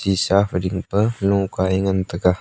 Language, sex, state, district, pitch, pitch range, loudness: Wancho, male, Arunachal Pradesh, Longding, 95 Hz, 95-100 Hz, -20 LUFS